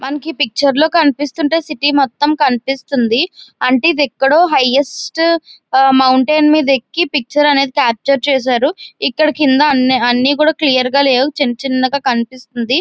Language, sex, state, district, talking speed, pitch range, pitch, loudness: Telugu, female, Andhra Pradesh, Visakhapatnam, 130 wpm, 260-300 Hz, 275 Hz, -13 LUFS